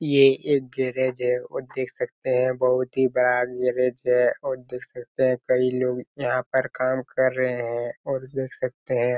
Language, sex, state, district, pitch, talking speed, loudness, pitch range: Hindi, male, Chhattisgarh, Raigarh, 125 Hz, 190 wpm, -24 LUFS, 125-130 Hz